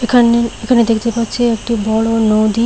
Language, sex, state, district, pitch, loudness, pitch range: Bengali, female, West Bengal, Paschim Medinipur, 230 Hz, -14 LUFS, 220-235 Hz